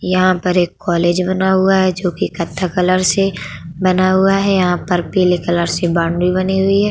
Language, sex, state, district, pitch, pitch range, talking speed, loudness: Hindi, female, Uttar Pradesh, Budaun, 185 Hz, 175-190 Hz, 200 wpm, -15 LUFS